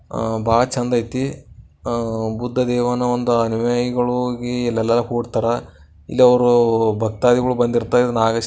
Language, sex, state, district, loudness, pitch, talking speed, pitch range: Kannada, male, Karnataka, Bijapur, -18 LUFS, 120 Hz, 85 wpm, 115-125 Hz